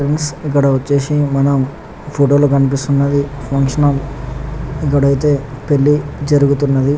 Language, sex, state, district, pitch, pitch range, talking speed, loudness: Telugu, male, Telangana, Nalgonda, 140 Hz, 140-145 Hz, 120 wpm, -15 LUFS